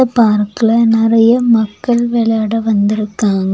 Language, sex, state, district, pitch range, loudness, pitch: Tamil, female, Tamil Nadu, Nilgiris, 210-235 Hz, -13 LUFS, 225 Hz